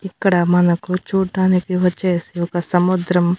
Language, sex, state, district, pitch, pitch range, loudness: Telugu, female, Andhra Pradesh, Annamaya, 180 Hz, 175-185 Hz, -18 LUFS